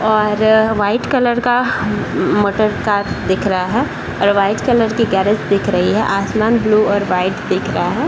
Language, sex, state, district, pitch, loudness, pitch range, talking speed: Hindi, male, Bihar, Saran, 215 Hz, -15 LUFS, 200-220 Hz, 180 wpm